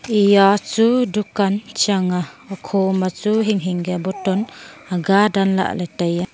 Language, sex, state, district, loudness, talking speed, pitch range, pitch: Wancho, female, Arunachal Pradesh, Longding, -18 LUFS, 140 wpm, 185-210 Hz, 195 Hz